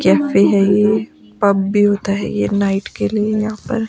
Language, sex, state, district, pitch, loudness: Hindi, female, Himachal Pradesh, Shimla, 200 Hz, -16 LUFS